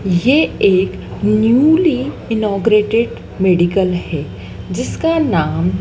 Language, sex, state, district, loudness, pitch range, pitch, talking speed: Hindi, female, Madhya Pradesh, Dhar, -15 LUFS, 185-255 Hz, 210 Hz, 85 wpm